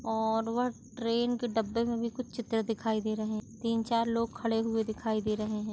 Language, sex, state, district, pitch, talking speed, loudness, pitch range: Hindi, female, Maharashtra, Dhule, 225 Hz, 230 wpm, -32 LUFS, 220-235 Hz